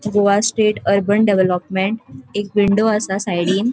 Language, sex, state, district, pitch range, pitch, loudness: Konkani, female, Goa, North and South Goa, 190-210 Hz, 205 Hz, -17 LUFS